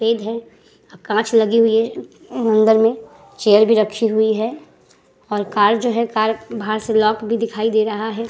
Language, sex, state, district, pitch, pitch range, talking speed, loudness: Hindi, female, Uttar Pradesh, Hamirpur, 220 Hz, 215-230 Hz, 190 wpm, -17 LUFS